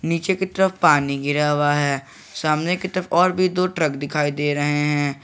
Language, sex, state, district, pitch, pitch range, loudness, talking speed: Hindi, male, Jharkhand, Garhwa, 150 Hz, 145-180 Hz, -20 LUFS, 205 wpm